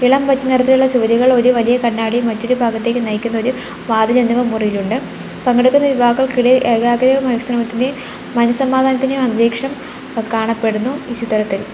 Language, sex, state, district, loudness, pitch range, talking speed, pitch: Malayalam, female, Kerala, Kollam, -15 LUFS, 230-255 Hz, 125 wpm, 245 Hz